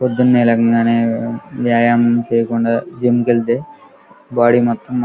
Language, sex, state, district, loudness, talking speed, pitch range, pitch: Telugu, male, Andhra Pradesh, Krishna, -15 LUFS, 120 wpm, 115-125 Hz, 120 Hz